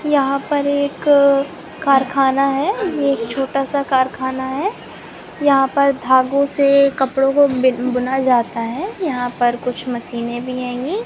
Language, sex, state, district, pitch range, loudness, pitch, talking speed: Hindi, female, Chhattisgarh, Korba, 255-280 Hz, -17 LUFS, 270 Hz, 140 wpm